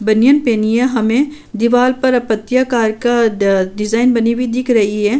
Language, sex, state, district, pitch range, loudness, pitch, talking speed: Hindi, female, Uttar Pradesh, Budaun, 220-250 Hz, -14 LUFS, 235 Hz, 185 wpm